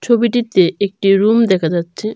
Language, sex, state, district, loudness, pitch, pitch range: Bengali, female, Tripura, Dhalai, -14 LUFS, 200 Hz, 190-230 Hz